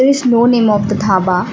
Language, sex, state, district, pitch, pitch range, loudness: English, female, Assam, Kamrup Metropolitan, 215 Hz, 200-240 Hz, -12 LUFS